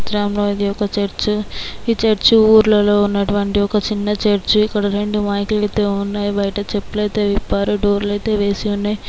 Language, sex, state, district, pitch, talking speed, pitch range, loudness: Telugu, female, Andhra Pradesh, Chittoor, 205 Hz, 180 wpm, 205-210 Hz, -17 LUFS